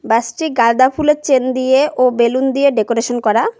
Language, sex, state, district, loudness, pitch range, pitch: Bengali, female, West Bengal, Cooch Behar, -14 LUFS, 235-280 Hz, 255 Hz